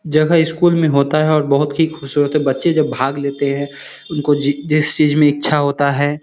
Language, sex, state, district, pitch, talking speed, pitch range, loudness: Hindi, male, Bihar, Samastipur, 150 Hz, 230 wpm, 140-155 Hz, -15 LUFS